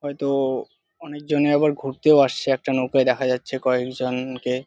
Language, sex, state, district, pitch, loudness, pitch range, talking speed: Bengali, male, West Bengal, Jalpaiguri, 135 Hz, -21 LUFS, 130-145 Hz, 155 wpm